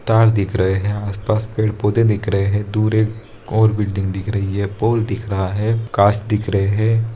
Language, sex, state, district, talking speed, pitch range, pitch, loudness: Hindi, male, Bihar, Saharsa, 200 wpm, 100-110 Hz, 105 Hz, -18 LUFS